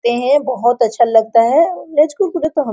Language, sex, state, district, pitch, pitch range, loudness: Hindi, female, Jharkhand, Sahebganj, 260 Hz, 235-310 Hz, -14 LUFS